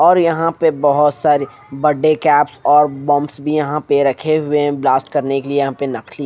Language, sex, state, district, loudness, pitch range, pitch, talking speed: Hindi, male, Haryana, Rohtak, -15 LUFS, 140-150 Hz, 145 Hz, 220 wpm